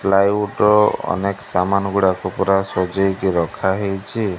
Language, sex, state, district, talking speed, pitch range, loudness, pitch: Odia, male, Odisha, Malkangiri, 125 wpm, 95-100 Hz, -18 LUFS, 95 Hz